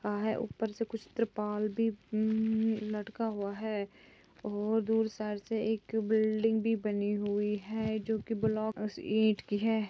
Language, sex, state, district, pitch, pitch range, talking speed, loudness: Hindi, female, Andhra Pradesh, Chittoor, 220 Hz, 210-220 Hz, 145 wpm, -33 LUFS